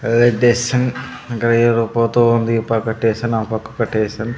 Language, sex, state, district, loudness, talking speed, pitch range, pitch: Telugu, male, Andhra Pradesh, Sri Satya Sai, -17 LUFS, 125 wpm, 115-120 Hz, 115 Hz